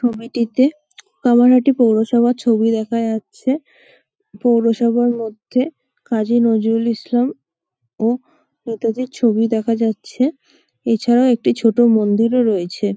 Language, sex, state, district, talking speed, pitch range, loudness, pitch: Bengali, female, West Bengal, Kolkata, 95 wpm, 225-255 Hz, -17 LUFS, 235 Hz